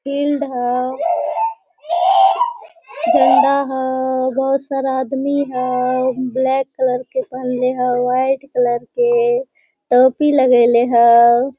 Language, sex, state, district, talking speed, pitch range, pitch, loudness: Hindi, female, Jharkhand, Sahebganj, 100 wpm, 250-290 Hz, 260 Hz, -16 LUFS